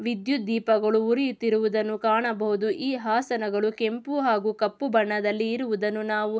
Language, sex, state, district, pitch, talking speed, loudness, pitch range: Kannada, female, Karnataka, Mysore, 220 Hz, 110 wpm, -25 LUFS, 215-235 Hz